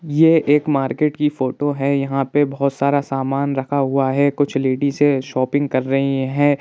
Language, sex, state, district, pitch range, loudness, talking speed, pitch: Hindi, male, Bihar, Saran, 135-145 Hz, -18 LUFS, 180 wpm, 140 Hz